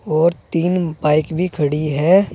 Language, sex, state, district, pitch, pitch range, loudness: Hindi, male, Uttar Pradesh, Saharanpur, 165 Hz, 155-175 Hz, -18 LUFS